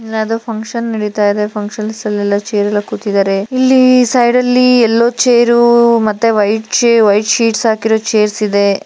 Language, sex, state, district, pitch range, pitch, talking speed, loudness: Kannada, female, Karnataka, Gulbarga, 210-235 Hz, 220 Hz, 140 wpm, -12 LUFS